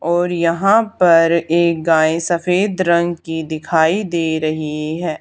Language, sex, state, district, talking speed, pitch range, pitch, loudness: Hindi, female, Haryana, Charkhi Dadri, 140 wpm, 160-175 Hz, 170 Hz, -16 LUFS